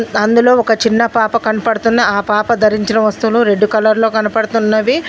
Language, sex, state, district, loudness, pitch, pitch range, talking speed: Telugu, female, Telangana, Mahabubabad, -13 LUFS, 220 Hz, 215-230 Hz, 140 wpm